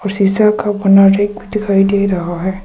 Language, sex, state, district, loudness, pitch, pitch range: Hindi, female, Arunachal Pradesh, Papum Pare, -13 LUFS, 200 Hz, 195-205 Hz